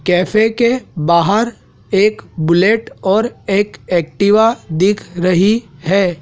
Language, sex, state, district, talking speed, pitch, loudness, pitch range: Hindi, male, Madhya Pradesh, Dhar, 105 wpm, 195 Hz, -15 LUFS, 175-215 Hz